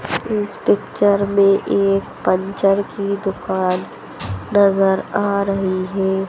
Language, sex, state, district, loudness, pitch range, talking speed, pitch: Hindi, male, Madhya Pradesh, Bhopal, -18 LUFS, 190-200 Hz, 105 wpm, 195 Hz